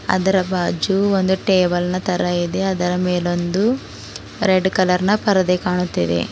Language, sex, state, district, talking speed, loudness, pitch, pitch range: Kannada, female, Karnataka, Bidar, 135 wpm, -18 LUFS, 185 Hz, 180-190 Hz